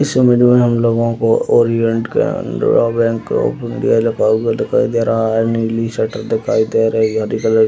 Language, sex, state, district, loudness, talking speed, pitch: Hindi, male, Uttar Pradesh, Deoria, -15 LUFS, 205 wpm, 115 Hz